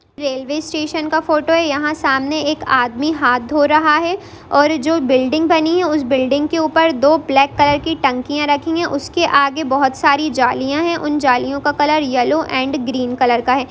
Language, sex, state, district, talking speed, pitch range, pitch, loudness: Hindi, female, Bihar, Sitamarhi, 200 wpm, 270-315 Hz, 290 Hz, -15 LUFS